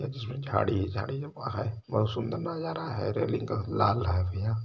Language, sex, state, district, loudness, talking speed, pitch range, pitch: Hindi, male, Uttar Pradesh, Varanasi, -31 LUFS, 180 wpm, 105-135 Hz, 110 Hz